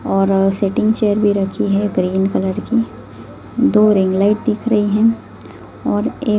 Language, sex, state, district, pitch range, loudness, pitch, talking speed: Hindi, female, Delhi, New Delhi, 195-220 Hz, -16 LUFS, 205 Hz, 160 wpm